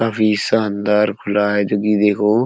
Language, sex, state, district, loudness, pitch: Hindi, male, Uttar Pradesh, Etah, -17 LUFS, 105 Hz